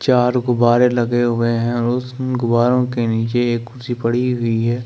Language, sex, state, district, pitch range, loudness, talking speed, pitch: Hindi, male, Delhi, New Delhi, 120-125 Hz, -18 LUFS, 210 wpm, 120 Hz